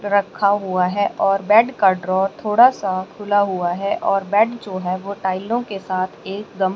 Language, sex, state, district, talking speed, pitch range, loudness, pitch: Hindi, male, Haryana, Charkhi Dadri, 185 wpm, 190-205 Hz, -19 LUFS, 195 Hz